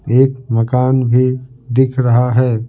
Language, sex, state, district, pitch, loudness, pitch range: Hindi, male, Bihar, Patna, 125 Hz, -14 LUFS, 125-130 Hz